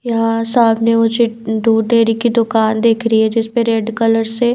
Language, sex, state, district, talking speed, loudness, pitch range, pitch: Hindi, female, Bihar, Patna, 185 wpm, -14 LUFS, 225-230 Hz, 230 Hz